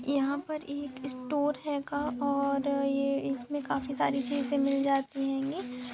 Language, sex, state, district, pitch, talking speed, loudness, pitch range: Hindi, female, Bihar, Araria, 275 Hz, 150 wpm, -31 LUFS, 275-285 Hz